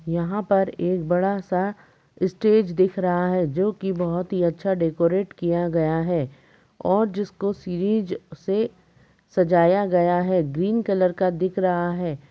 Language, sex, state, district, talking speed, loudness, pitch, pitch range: Hindi, female, Uttar Pradesh, Jalaun, 140 wpm, -23 LUFS, 185 Hz, 175-195 Hz